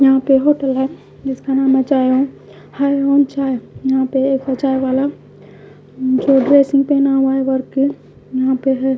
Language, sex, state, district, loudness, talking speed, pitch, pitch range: Hindi, female, Haryana, Charkhi Dadri, -16 LUFS, 165 wpm, 270 Hz, 265-275 Hz